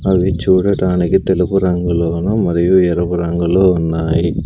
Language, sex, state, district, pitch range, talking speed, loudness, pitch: Telugu, male, Andhra Pradesh, Sri Satya Sai, 85-95 Hz, 110 wpm, -14 LUFS, 90 Hz